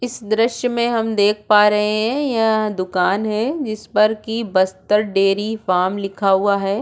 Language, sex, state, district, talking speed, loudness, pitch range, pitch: Hindi, female, Chhattisgarh, Korba, 175 wpm, -18 LUFS, 200-225 Hz, 210 Hz